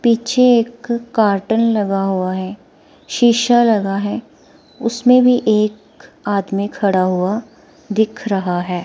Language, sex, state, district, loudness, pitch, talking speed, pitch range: Hindi, female, Himachal Pradesh, Shimla, -16 LUFS, 215 Hz, 120 wpm, 195-235 Hz